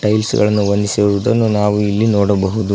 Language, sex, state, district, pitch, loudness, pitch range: Kannada, male, Karnataka, Koppal, 105 Hz, -15 LUFS, 100-110 Hz